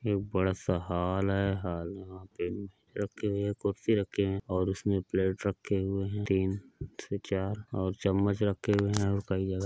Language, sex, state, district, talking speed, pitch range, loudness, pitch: Hindi, male, Uttar Pradesh, Hamirpur, 175 wpm, 95-100 Hz, -31 LUFS, 100 Hz